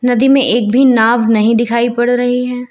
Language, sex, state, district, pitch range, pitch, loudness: Hindi, female, Uttar Pradesh, Lucknow, 235-250 Hz, 245 Hz, -12 LUFS